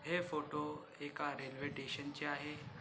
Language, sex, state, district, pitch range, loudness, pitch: Marathi, male, Maharashtra, Aurangabad, 145-150 Hz, -43 LUFS, 145 Hz